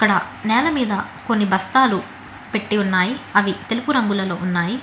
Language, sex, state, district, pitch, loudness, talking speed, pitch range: Telugu, female, Telangana, Hyderabad, 210 Hz, -19 LUFS, 150 wpm, 190-240 Hz